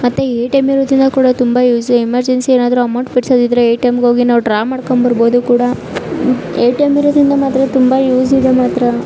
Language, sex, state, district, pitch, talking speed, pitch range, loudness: Kannada, female, Karnataka, Raichur, 250 Hz, 165 wpm, 245-265 Hz, -12 LUFS